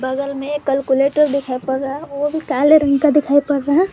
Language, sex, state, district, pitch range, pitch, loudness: Hindi, female, Jharkhand, Garhwa, 275-295 Hz, 280 Hz, -17 LUFS